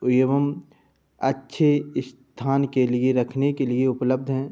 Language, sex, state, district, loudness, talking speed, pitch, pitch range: Hindi, male, Uttar Pradesh, Budaun, -23 LUFS, 145 wpm, 130 Hz, 130-140 Hz